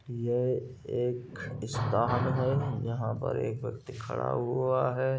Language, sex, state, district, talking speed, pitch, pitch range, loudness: Hindi, male, Bihar, Gopalganj, 125 wpm, 125 Hz, 120-130 Hz, -31 LUFS